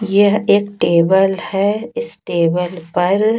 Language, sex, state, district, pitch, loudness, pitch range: Hindi, female, Chhattisgarh, Raipur, 195 Hz, -16 LUFS, 180-205 Hz